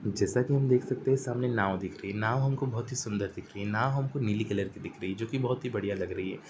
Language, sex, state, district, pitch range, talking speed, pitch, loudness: Hindi, male, Uttar Pradesh, Varanasi, 100-130 Hz, 330 wpm, 115 Hz, -31 LUFS